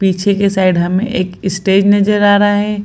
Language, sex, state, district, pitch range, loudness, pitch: Hindi, female, Bihar, Lakhisarai, 185-205 Hz, -13 LUFS, 200 Hz